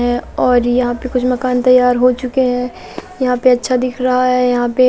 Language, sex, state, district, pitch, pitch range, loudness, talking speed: Hindi, female, Madhya Pradesh, Katni, 250 Hz, 245-255 Hz, -14 LUFS, 220 wpm